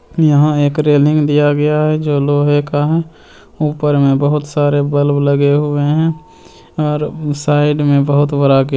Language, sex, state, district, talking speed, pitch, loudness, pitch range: Hindi, male, Bihar, Purnia, 165 wpm, 145 Hz, -13 LUFS, 145-150 Hz